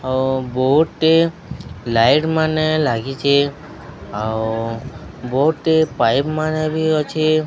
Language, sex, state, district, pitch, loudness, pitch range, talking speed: Odia, male, Odisha, Sambalpur, 140 Hz, -17 LUFS, 125-155 Hz, 90 wpm